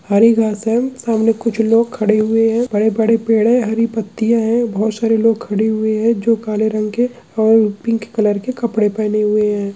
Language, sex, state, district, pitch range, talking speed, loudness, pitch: Hindi, male, Chhattisgarh, Kabirdham, 215-230 Hz, 205 wpm, -16 LUFS, 225 Hz